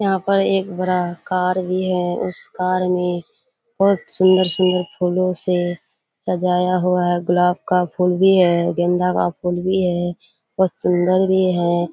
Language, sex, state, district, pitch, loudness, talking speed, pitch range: Hindi, female, Bihar, Kishanganj, 180 Hz, -18 LUFS, 155 wpm, 175-185 Hz